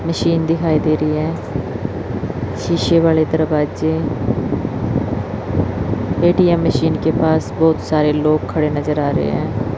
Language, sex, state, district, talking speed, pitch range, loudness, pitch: Hindi, female, Chandigarh, Chandigarh, 125 wpm, 120-160 Hz, -17 LUFS, 155 Hz